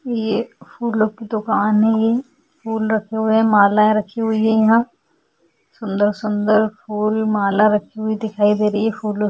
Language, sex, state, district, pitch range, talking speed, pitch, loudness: Hindi, female, Goa, North and South Goa, 210-225 Hz, 170 wpm, 215 Hz, -18 LUFS